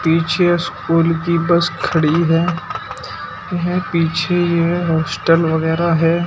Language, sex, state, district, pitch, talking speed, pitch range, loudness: Hindi, male, Uttar Pradesh, Shamli, 170 Hz, 115 wpm, 165-175 Hz, -16 LUFS